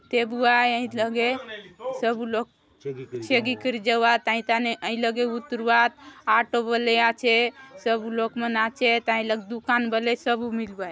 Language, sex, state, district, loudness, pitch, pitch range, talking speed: Halbi, female, Chhattisgarh, Bastar, -23 LUFS, 235 Hz, 225-240 Hz, 145 wpm